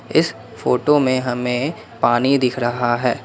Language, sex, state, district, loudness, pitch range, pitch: Hindi, male, Assam, Kamrup Metropolitan, -19 LUFS, 120-135 Hz, 125 Hz